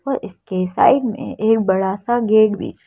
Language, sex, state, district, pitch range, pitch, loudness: Hindi, female, Madhya Pradesh, Bhopal, 190-240 Hz, 220 Hz, -17 LUFS